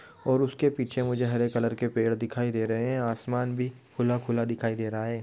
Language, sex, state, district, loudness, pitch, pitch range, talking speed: Hindi, male, Uttar Pradesh, Gorakhpur, -28 LUFS, 120 Hz, 115-125 Hz, 230 wpm